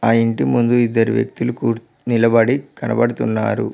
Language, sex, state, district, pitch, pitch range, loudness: Telugu, male, Telangana, Mahabubabad, 115 Hz, 115-120 Hz, -17 LUFS